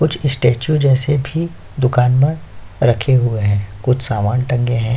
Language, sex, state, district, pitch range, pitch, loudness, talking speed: Hindi, male, Chhattisgarh, Korba, 120-140 Hz, 125 Hz, -16 LUFS, 155 wpm